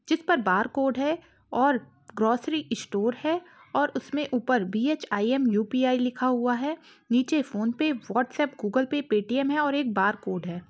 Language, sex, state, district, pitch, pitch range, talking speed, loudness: Hindi, female, Jharkhand, Sahebganj, 255 Hz, 225-290 Hz, 150 wpm, -26 LUFS